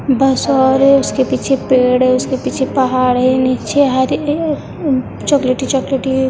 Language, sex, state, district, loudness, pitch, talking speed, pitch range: Hindi, female, Maharashtra, Mumbai Suburban, -14 LUFS, 265 Hz, 145 wpm, 255-275 Hz